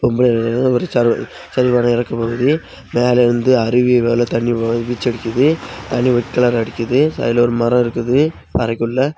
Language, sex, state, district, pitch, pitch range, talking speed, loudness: Tamil, male, Tamil Nadu, Kanyakumari, 120 Hz, 115-125 Hz, 145 wpm, -16 LUFS